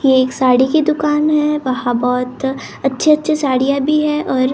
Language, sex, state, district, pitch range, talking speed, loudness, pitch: Hindi, male, Maharashtra, Gondia, 255-300 Hz, 200 wpm, -15 LUFS, 270 Hz